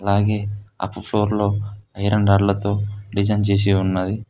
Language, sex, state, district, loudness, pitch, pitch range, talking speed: Telugu, male, Telangana, Hyderabad, -20 LUFS, 100 Hz, 100-105 Hz, 110 wpm